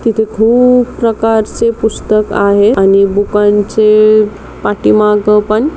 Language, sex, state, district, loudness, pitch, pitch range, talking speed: Marathi, female, Maharashtra, Pune, -10 LUFS, 215 Hz, 205-225 Hz, 95 wpm